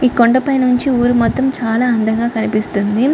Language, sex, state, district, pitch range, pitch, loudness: Telugu, female, Andhra Pradesh, Chittoor, 225-255 Hz, 240 Hz, -15 LUFS